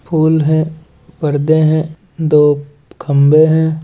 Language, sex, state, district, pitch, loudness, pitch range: Hindi, male, Chhattisgarh, Raigarh, 155 Hz, -13 LUFS, 150-160 Hz